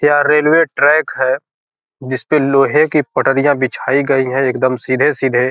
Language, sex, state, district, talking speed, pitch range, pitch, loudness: Hindi, male, Bihar, Gopalganj, 140 wpm, 130-150 Hz, 140 Hz, -14 LUFS